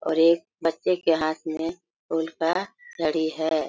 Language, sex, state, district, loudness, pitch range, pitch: Hindi, female, Jharkhand, Sahebganj, -25 LUFS, 160-170 Hz, 165 Hz